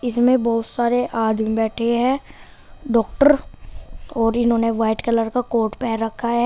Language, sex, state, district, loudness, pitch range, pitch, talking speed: Hindi, female, Uttar Pradesh, Shamli, -20 LUFS, 225-245 Hz, 235 Hz, 150 wpm